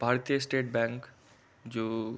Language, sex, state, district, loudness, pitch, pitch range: Garhwali, male, Uttarakhand, Tehri Garhwal, -31 LUFS, 120 Hz, 115-130 Hz